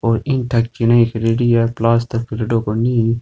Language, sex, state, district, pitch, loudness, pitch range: Rajasthani, male, Rajasthan, Nagaur, 115 Hz, -17 LUFS, 115-120 Hz